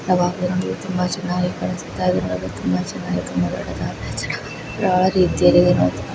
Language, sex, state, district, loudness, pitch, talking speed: Kannada, female, Karnataka, Chamarajanagar, -20 LUFS, 175 Hz, 90 wpm